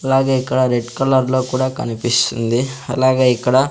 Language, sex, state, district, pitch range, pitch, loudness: Telugu, male, Andhra Pradesh, Sri Satya Sai, 120-130 Hz, 130 Hz, -17 LUFS